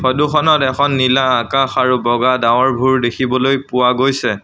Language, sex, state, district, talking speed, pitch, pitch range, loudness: Assamese, male, Assam, Sonitpur, 150 wpm, 130 Hz, 125-135 Hz, -14 LUFS